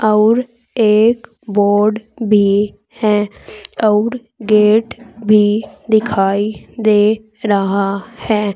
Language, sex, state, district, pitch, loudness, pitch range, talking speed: Hindi, female, Uttar Pradesh, Saharanpur, 215 Hz, -15 LUFS, 205-225 Hz, 85 wpm